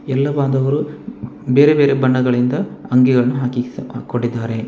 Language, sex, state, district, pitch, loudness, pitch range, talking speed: Kannada, male, Karnataka, Bangalore, 130 Hz, -16 LUFS, 125-140 Hz, 100 wpm